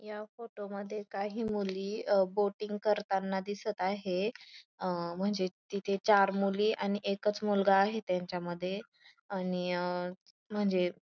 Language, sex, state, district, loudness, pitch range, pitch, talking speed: Marathi, female, Maharashtra, Dhule, -33 LUFS, 185-210 Hz, 200 Hz, 115 wpm